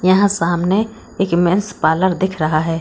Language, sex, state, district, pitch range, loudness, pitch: Hindi, female, Bihar, East Champaran, 165-195 Hz, -17 LUFS, 185 Hz